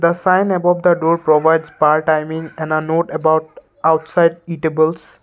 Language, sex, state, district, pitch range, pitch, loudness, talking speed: English, male, Assam, Kamrup Metropolitan, 155-170 Hz, 160 Hz, -16 LUFS, 150 wpm